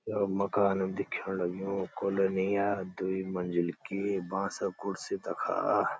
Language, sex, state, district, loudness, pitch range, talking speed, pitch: Garhwali, male, Uttarakhand, Uttarkashi, -32 LUFS, 95-100 Hz, 120 wpm, 95 Hz